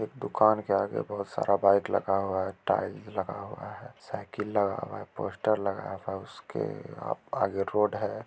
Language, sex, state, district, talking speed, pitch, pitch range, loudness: Hindi, male, Bihar, Gopalganj, 195 wpm, 100 Hz, 95-105 Hz, -30 LUFS